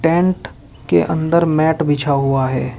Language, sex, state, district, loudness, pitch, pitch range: Hindi, male, Uttar Pradesh, Shamli, -16 LUFS, 150 Hz, 130-165 Hz